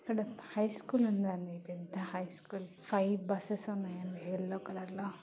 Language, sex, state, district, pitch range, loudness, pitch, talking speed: Telugu, female, Telangana, Nalgonda, 180-205 Hz, -37 LUFS, 190 Hz, 170 wpm